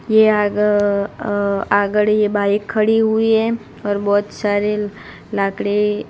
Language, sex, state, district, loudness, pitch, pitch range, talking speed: Hindi, female, Gujarat, Gandhinagar, -17 LUFS, 205 Hz, 205-215 Hz, 135 wpm